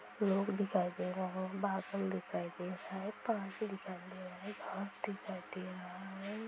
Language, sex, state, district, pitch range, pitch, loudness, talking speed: Hindi, female, Bihar, Sitamarhi, 185-200 Hz, 195 Hz, -40 LUFS, 185 wpm